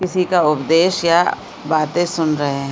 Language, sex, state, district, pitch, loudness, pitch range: Hindi, female, Chhattisgarh, Balrampur, 165 Hz, -17 LUFS, 150-175 Hz